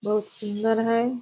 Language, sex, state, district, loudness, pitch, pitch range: Hindi, female, Bihar, Purnia, -25 LUFS, 225 Hz, 210-230 Hz